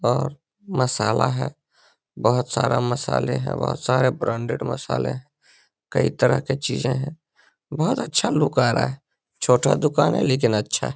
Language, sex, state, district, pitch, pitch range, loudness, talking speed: Hindi, male, Bihar, Lakhisarai, 125 Hz, 115-140 Hz, -22 LUFS, 160 wpm